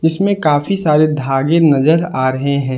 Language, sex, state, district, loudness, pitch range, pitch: Hindi, male, Jharkhand, Palamu, -14 LUFS, 135-165 Hz, 150 Hz